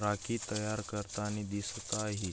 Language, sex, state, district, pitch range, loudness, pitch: Marathi, male, Maharashtra, Aurangabad, 100-105 Hz, -36 LUFS, 105 Hz